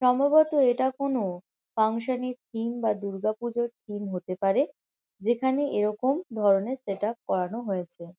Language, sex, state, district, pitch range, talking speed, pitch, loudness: Bengali, female, West Bengal, Kolkata, 200-255 Hz, 130 wpm, 230 Hz, -27 LUFS